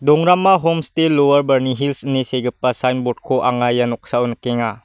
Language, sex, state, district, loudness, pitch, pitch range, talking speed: Garo, male, Meghalaya, West Garo Hills, -17 LUFS, 130 Hz, 125-145 Hz, 150 wpm